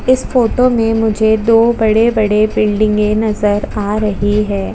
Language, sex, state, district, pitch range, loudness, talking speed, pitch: Hindi, female, Chhattisgarh, Jashpur, 210-225 Hz, -13 LUFS, 165 wpm, 215 Hz